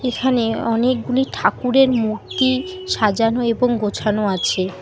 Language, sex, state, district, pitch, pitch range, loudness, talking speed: Bengali, female, West Bengal, Alipurduar, 235 Hz, 215-255 Hz, -18 LUFS, 100 wpm